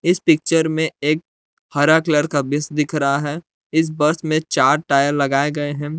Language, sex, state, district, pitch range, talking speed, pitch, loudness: Hindi, male, Jharkhand, Palamu, 145-160 Hz, 190 wpm, 150 Hz, -18 LUFS